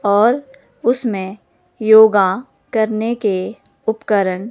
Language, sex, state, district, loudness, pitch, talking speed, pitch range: Hindi, female, Himachal Pradesh, Shimla, -16 LUFS, 220 Hz, 80 wpm, 200-235 Hz